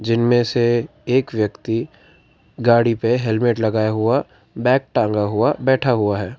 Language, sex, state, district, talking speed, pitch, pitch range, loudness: Hindi, male, Karnataka, Bangalore, 140 wpm, 120 Hz, 110-125 Hz, -18 LUFS